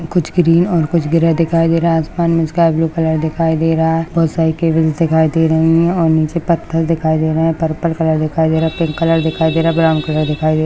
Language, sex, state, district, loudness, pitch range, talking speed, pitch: Hindi, male, Maharashtra, Dhule, -14 LUFS, 160-165 Hz, 275 wpm, 165 Hz